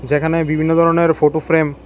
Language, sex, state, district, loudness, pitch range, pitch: Bengali, male, Tripura, West Tripura, -15 LUFS, 150-165 Hz, 160 Hz